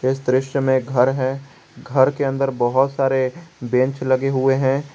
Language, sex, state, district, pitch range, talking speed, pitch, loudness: Hindi, male, Jharkhand, Garhwa, 130-135 Hz, 180 wpm, 130 Hz, -19 LUFS